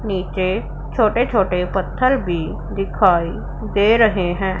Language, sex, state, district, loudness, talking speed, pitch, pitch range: Hindi, female, Punjab, Pathankot, -18 LUFS, 115 wpm, 195 Hz, 180-215 Hz